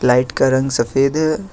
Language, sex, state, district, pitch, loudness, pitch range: Hindi, male, Jharkhand, Ranchi, 135 Hz, -16 LUFS, 125-155 Hz